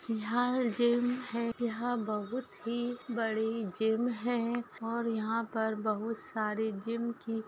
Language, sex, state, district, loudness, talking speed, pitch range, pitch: Hindi, female, Uttar Pradesh, Budaun, -33 LUFS, 135 wpm, 220-240 Hz, 230 Hz